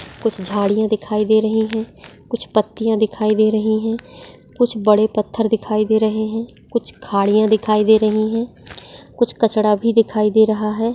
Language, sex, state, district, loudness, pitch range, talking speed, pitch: Hindi, female, Maharashtra, Solapur, -17 LUFS, 215-225 Hz, 175 wpm, 220 Hz